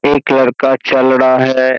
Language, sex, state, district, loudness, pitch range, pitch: Hindi, male, Bihar, Kishanganj, -11 LUFS, 130-135 Hz, 130 Hz